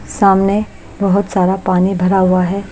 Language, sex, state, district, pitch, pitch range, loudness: Hindi, female, Chhattisgarh, Raipur, 195 Hz, 185-200 Hz, -14 LUFS